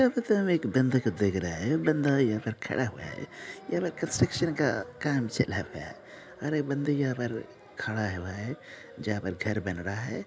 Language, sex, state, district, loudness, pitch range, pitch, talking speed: Hindi, male, Jharkhand, Jamtara, -30 LUFS, 105-145 Hz, 125 Hz, 220 wpm